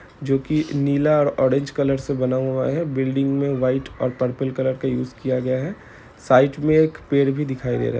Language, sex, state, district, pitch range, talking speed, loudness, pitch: Hindi, male, Bihar, Gopalganj, 130-140 Hz, 215 wpm, -21 LUFS, 135 Hz